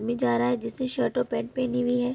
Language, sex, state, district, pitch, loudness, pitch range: Hindi, female, Bihar, Vaishali, 245 Hz, -27 LUFS, 235-250 Hz